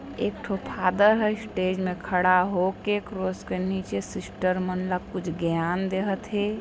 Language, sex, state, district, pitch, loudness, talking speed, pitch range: Chhattisgarhi, female, Chhattisgarh, Sarguja, 185 Hz, -26 LUFS, 155 wpm, 180-205 Hz